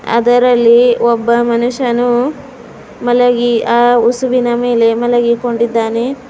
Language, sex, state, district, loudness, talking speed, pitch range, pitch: Kannada, female, Karnataka, Bidar, -12 LUFS, 75 wpm, 235-245 Hz, 240 Hz